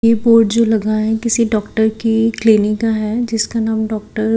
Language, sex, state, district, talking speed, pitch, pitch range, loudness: Hindi, female, Haryana, Rohtak, 205 wpm, 220 Hz, 220-230 Hz, -15 LUFS